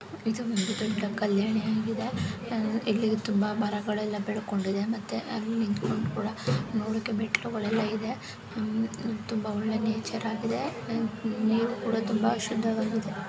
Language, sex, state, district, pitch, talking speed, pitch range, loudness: Kannada, female, Karnataka, Dharwad, 220 Hz, 115 wpm, 210-225 Hz, -30 LUFS